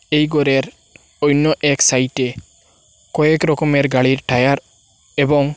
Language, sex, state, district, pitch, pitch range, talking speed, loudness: Bengali, male, Assam, Hailakandi, 140 Hz, 130-150 Hz, 110 wpm, -16 LUFS